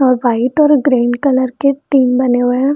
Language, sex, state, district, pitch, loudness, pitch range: Hindi, female, Bihar, Gaya, 260 Hz, -13 LUFS, 245-275 Hz